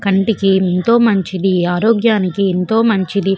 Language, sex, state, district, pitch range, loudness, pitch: Telugu, female, Andhra Pradesh, Visakhapatnam, 190-220 Hz, -14 LUFS, 195 Hz